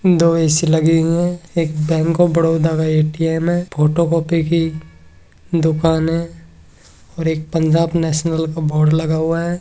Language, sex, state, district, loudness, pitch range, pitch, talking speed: Hindi, male, Rajasthan, Nagaur, -16 LUFS, 155-165 Hz, 160 Hz, 160 wpm